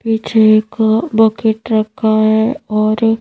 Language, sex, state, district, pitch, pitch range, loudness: Hindi, female, Madhya Pradesh, Bhopal, 220 Hz, 215-225 Hz, -13 LUFS